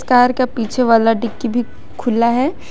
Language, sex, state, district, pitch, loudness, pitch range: Hindi, male, Jharkhand, Garhwa, 240 Hz, -16 LUFS, 230-250 Hz